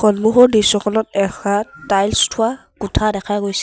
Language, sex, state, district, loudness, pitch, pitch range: Assamese, male, Assam, Sonitpur, -16 LUFS, 210 Hz, 200-220 Hz